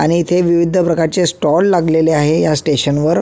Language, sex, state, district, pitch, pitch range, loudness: Marathi, male, Maharashtra, Solapur, 165 Hz, 155-175 Hz, -13 LUFS